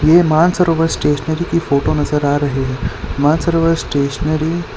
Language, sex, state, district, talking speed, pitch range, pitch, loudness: Hindi, male, Gujarat, Valsad, 150 wpm, 145-165 Hz, 155 Hz, -15 LUFS